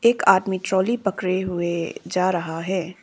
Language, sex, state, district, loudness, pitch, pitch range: Hindi, female, Arunachal Pradesh, Papum Pare, -22 LUFS, 185 Hz, 175-190 Hz